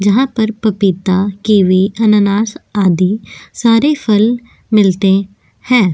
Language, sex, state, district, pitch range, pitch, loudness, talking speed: Hindi, female, Goa, North and South Goa, 195-225 Hz, 210 Hz, -13 LUFS, 100 wpm